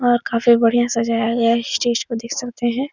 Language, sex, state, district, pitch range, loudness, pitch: Hindi, female, Uttar Pradesh, Etah, 230-240 Hz, -18 LUFS, 235 Hz